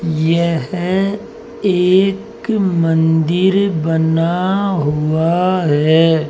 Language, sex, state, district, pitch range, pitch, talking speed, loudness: Hindi, male, Rajasthan, Jaipur, 160-190 Hz, 170 Hz, 55 wpm, -15 LUFS